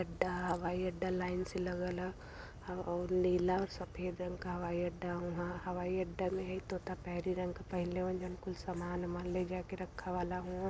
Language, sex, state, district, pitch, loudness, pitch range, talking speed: Bhojpuri, female, Uttar Pradesh, Varanasi, 180 Hz, -39 LUFS, 180-185 Hz, 185 wpm